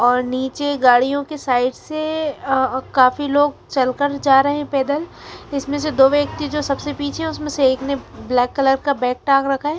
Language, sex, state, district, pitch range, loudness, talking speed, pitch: Hindi, female, Chandigarh, Chandigarh, 260-290 Hz, -18 LUFS, 210 wpm, 280 Hz